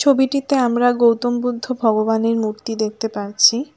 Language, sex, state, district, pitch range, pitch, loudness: Bengali, female, West Bengal, Alipurduar, 225-255 Hz, 235 Hz, -18 LUFS